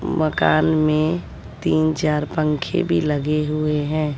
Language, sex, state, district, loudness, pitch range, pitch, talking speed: Hindi, female, Bihar, West Champaran, -20 LUFS, 150-155 Hz, 155 Hz, 130 wpm